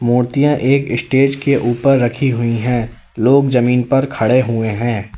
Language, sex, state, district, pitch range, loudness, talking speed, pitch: Hindi, male, Uttar Pradesh, Lalitpur, 120-135 Hz, -15 LUFS, 160 wpm, 125 Hz